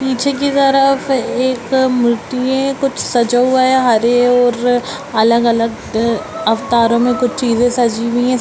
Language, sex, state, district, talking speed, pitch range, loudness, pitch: Hindi, female, Bihar, Jamui, 140 wpm, 235-265 Hz, -14 LUFS, 245 Hz